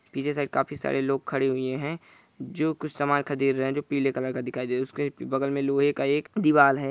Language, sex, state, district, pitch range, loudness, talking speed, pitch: Hindi, male, Bihar, Saran, 135-145 Hz, -26 LUFS, 270 wpm, 140 Hz